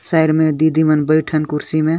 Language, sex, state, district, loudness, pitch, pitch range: Sadri, male, Chhattisgarh, Jashpur, -15 LUFS, 155 Hz, 155-160 Hz